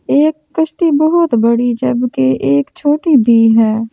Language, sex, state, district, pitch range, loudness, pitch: Hindi, female, Delhi, New Delhi, 225-305 Hz, -12 LUFS, 245 Hz